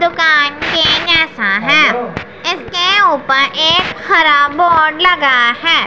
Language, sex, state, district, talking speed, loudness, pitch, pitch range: Hindi, female, Punjab, Pathankot, 110 wpm, -11 LUFS, 310 Hz, 275-340 Hz